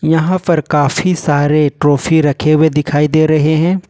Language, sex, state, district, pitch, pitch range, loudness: Hindi, male, Jharkhand, Ranchi, 155 Hz, 145-165 Hz, -12 LUFS